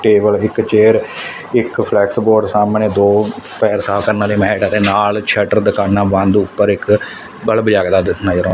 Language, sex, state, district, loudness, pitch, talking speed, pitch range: Punjabi, male, Punjab, Fazilka, -14 LUFS, 105 Hz, 170 wpm, 100-105 Hz